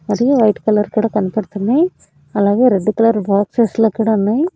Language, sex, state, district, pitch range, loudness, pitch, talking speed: Telugu, female, Andhra Pradesh, Annamaya, 205-230 Hz, -15 LUFS, 215 Hz, 160 wpm